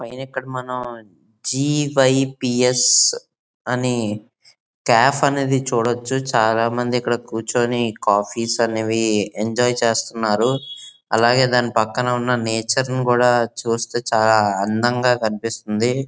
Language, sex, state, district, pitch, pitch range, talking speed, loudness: Telugu, male, Andhra Pradesh, Visakhapatnam, 120 Hz, 115-125 Hz, 100 wpm, -19 LUFS